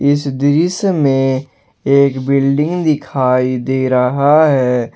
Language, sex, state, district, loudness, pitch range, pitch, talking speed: Hindi, male, Jharkhand, Ranchi, -14 LUFS, 130-145 Hz, 140 Hz, 110 wpm